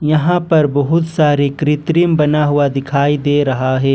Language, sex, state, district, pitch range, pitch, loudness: Hindi, male, Jharkhand, Ranchi, 140-155 Hz, 150 Hz, -14 LUFS